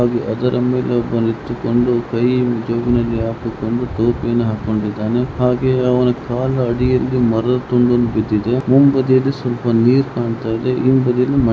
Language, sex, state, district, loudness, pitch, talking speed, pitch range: Kannada, male, Karnataka, Mysore, -16 LUFS, 120 Hz, 95 wpm, 115-125 Hz